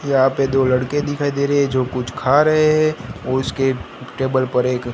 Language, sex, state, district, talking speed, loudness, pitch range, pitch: Hindi, male, Gujarat, Gandhinagar, 205 wpm, -18 LUFS, 125-145 Hz, 130 Hz